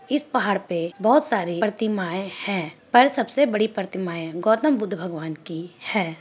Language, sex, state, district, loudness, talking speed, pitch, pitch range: Hindi, female, Bihar, Gaya, -23 LUFS, 155 wpm, 200 Hz, 175-235 Hz